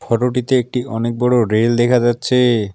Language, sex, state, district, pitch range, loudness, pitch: Bengali, male, West Bengal, Alipurduar, 115-125 Hz, -16 LUFS, 120 Hz